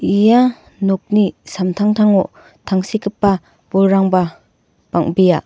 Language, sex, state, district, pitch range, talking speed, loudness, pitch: Garo, female, Meghalaya, North Garo Hills, 185-210 Hz, 65 wpm, -16 LUFS, 195 Hz